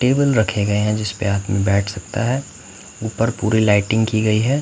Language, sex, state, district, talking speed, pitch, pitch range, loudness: Hindi, male, Bihar, Katihar, 205 wpm, 110 Hz, 100-115 Hz, -19 LUFS